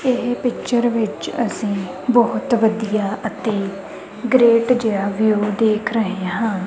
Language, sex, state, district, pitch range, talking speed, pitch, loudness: Punjabi, female, Punjab, Kapurthala, 205-240 Hz, 115 wpm, 220 Hz, -19 LUFS